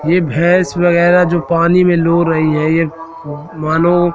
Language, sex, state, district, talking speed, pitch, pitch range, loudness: Hindi, male, Madhya Pradesh, Katni, 160 wpm, 170 Hz, 160-175 Hz, -13 LUFS